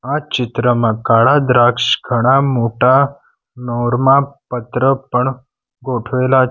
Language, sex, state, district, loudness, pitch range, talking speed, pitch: Gujarati, male, Gujarat, Valsad, -14 LUFS, 120-135 Hz, 100 wpm, 125 Hz